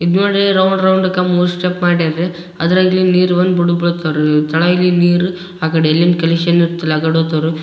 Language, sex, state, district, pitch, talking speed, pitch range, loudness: Kannada, male, Karnataka, Raichur, 175 Hz, 165 wpm, 165-180 Hz, -13 LUFS